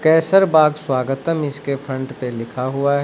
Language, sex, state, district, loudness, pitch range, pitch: Hindi, male, Uttar Pradesh, Lucknow, -18 LUFS, 130-155 Hz, 140 Hz